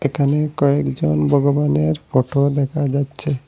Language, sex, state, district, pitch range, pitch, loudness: Bengali, male, Assam, Hailakandi, 130-145 Hz, 140 Hz, -18 LUFS